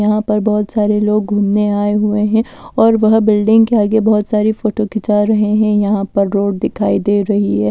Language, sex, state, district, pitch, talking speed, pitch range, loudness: Hindi, female, Delhi, New Delhi, 210 Hz, 210 wpm, 205-215 Hz, -14 LUFS